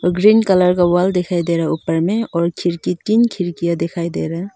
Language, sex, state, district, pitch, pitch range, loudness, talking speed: Hindi, female, Arunachal Pradesh, Papum Pare, 175 Hz, 170-185 Hz, -17 LUFS, 235 wpm